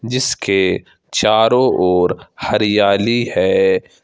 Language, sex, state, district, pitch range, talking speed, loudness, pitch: Hindi, male, Jharkhand, Ranchi, 100-130 Hz, 75 wpm, -15 LUFS, 110 Hz